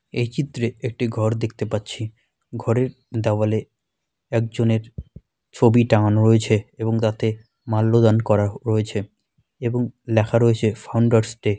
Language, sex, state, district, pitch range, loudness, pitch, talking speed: Bengali, male, West Bengal, Malda, 110-120 Hz, -21 LUFS, 115 Hz, 115 wpm